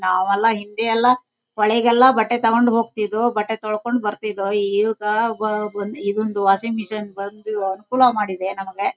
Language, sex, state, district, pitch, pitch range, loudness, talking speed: Kannada, female, Karnataka, Shimoga, 215 Hz, 205-230 Hz, -20 LUFS, 135 wpm